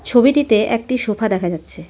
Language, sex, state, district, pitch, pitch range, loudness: Bengali, female, West Bengal, Darjeeling, 220 Hz, 195-250 Hz, -17 LUFS